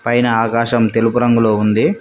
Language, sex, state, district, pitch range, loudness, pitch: Telugu, male, Telangana, Mahabubabad, 115-120 Hz, -14 LUFS, 115 Hz